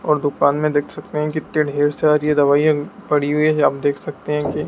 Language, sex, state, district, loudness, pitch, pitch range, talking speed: Hindi, male, Madhya Pradesh, Dhar, -18 LUFS, 150 Hz, 145-150 Hz, 245 wpm